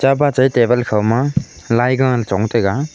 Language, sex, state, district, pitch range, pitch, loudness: Wancho, male, Arunachal Pradesh, Longding, 115-135 Hz, 125 Hz, -16 LUFS